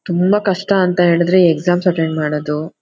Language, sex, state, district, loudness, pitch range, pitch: Kannada, female, Karnataka, Shimoga, -15 LUFS, 160-185 Hz, 175 Hz